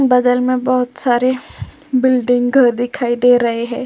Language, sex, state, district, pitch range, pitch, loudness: Hindi, female, Uttar Pradesh, Jyotiba Phule Nagar, 245-255 Hz, 250 Hz, -15 LUFS